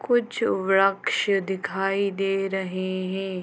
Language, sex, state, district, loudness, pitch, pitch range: Hindi, female, Bihar, Gopalganj, -24 LUFS, 195 Hz, 190-195 Hz